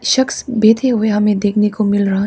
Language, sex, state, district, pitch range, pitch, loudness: Hindi, female, Arunachal Pradesh, Papum Pare, 205-225 Hz, 210 Hz, -14 LUFS